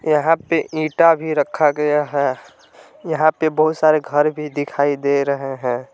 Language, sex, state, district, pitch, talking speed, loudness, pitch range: Hindi, male, Jharkhand, Palamu, 150 Hz, 170 wpm, -18 LUFS, 140-155 Hz